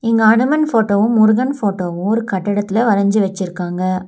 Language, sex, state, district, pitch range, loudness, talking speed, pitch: Tamil, female, Tamil Nadu, Nilgiris, 190-230 Hz, -15 LUFS, 130 wpm, 205 Hz